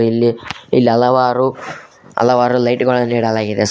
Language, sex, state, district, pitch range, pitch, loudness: Kannada, male, Karnataka, Koppal, 115-125 Hz, 120 Hz, -14 LUFS